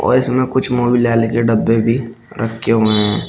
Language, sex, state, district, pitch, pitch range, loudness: Hindi, male, Uttar Pradesh, Shamli, 115 Hz, 115-120 Hz, -15 LUFS